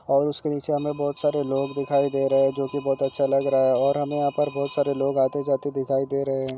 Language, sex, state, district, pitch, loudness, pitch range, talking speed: Hindi, male, Chhattisgarh, Jashpur, 140 Hz, -24 LUFS, 135-145 Hz, 285 wpm